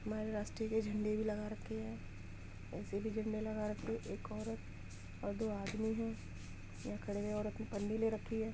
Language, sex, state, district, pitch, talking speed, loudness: Hindi, female, Uttar Pradesh, Muzaffarnagar, 115 Hz, 210 wpm, -42 LUFS